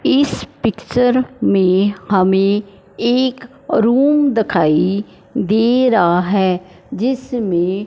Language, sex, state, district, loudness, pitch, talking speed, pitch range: Hindi, male, Punjab, Fazilka, -16 LUFS, 210 Hz, 85 wpm, 190-250 Hz